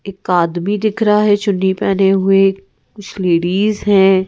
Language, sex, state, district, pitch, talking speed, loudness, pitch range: Hindi, female, Madhya Pradesh, Bhopal, 195 Hz, 155 wpm, -14 LUFS, 185-205 Hz